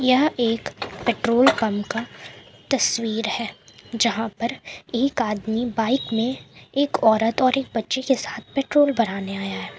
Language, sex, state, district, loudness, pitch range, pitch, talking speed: Hindi, female, Jharkhand, Palamu, -22 LUFS, 225-260 Hz, 235 Hz, 145 wpm